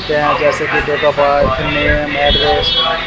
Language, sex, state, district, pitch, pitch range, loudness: Hindi, male, Bihar, Vaishali, 150 Hz, 145-150 Hz, -13 LUFS